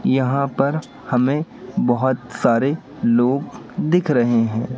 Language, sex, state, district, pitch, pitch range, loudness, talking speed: Hindi, male, Madhya Pradesh, Katni, 130 Hz, 120-145 Hz, -19 LUFS, 115 wpm